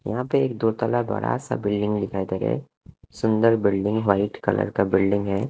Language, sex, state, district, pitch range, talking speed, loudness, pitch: Hindi, male, Punjab, Kapurthala, 100-115 Hz, 195 wpm, -23 LUFS, 105 Hz